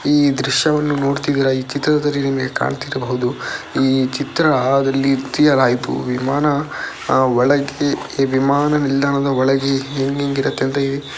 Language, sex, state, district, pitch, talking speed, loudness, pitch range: Kannada, male, Karnataka, Dakshina Kannada, 140 Hz, 115 wpm, -17 LUFS, 135-145 Hz